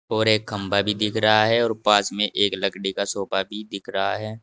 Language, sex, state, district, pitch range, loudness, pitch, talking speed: Hindi, male, Uttar Pradesh, Saharanpur, 100-110 Hz, -22 LUFS, 105 Hz, 245 wpm